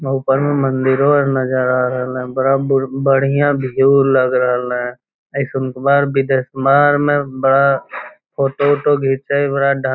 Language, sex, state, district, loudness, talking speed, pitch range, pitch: Magahi, male, Bihar, Lakhisarai, -15 LUFS, 115 wpm, 130-140 Hz, 135 Hz